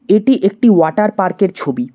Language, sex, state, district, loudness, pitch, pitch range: Bengali, male, West Bengal, Cooch Behar, -13 LUFS, 195 Hz, 165-210 Hz